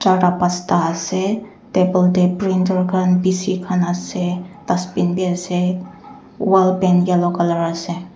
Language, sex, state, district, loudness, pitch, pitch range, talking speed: Nagamese, female, Nagaland, Dimapur, -18 LUFS, 180 Hz, 180-185 Hz, 125 wpm